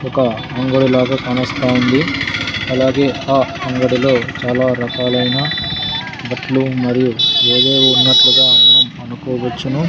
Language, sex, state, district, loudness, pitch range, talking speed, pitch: Telugu, male, Andhra Pradesh, Sri Satya Sai, -13 LUFS, 125-135 Hz, 95 wpm, 130 Hz